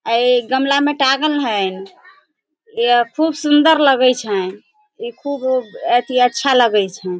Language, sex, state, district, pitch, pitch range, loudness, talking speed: Hindi, female, Bihar, Sitamarhi, 265 Hz, 235-310 Hz, -15 LUFS, 135 wpm